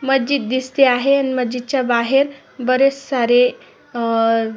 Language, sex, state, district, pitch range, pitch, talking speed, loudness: Marathi, female, Maharashtra, Sindhudurg, 245-270 Hz, 255 Hz, 120 wpm, -17 LUFS